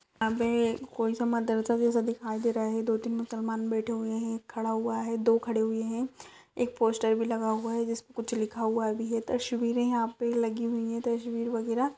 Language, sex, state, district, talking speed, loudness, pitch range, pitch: Hindi, female, Maharashtra, Solapur, 225 wpm, -30 LUFS, 225-235 Hz, 230 Hz